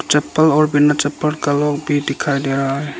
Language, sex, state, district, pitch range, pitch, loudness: Hindi, male, Arunachal Pradesh, Lower Dibang Valley, 140-150 Hz, 145 Hz, -17 LUFS